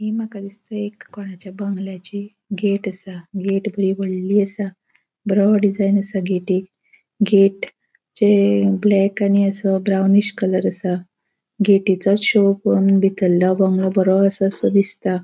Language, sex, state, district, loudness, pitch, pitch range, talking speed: Konkani, female, Goa, North and South Goa, -18 LUFS, 195 Hz, 190-205 Hz, 115 wpm